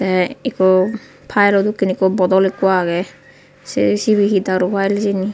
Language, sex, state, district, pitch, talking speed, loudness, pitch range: Chakma, female, Tripura, Unakoti, 190 Hz, 160 wpm, -16 LUFS, 185-205 Hz